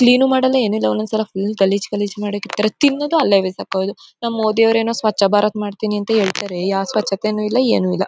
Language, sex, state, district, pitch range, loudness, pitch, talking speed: Kannada, female, Karnataka, Mysore, 200-225 Hz, -17 LUFS, 210 Hz, 185 wpm